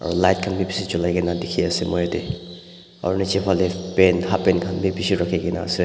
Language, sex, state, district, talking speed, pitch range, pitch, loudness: Nagamese, male, Nagaland, Dimapur, 215 wpm, 85-95 Hz, 90 Hz, -21 LUFS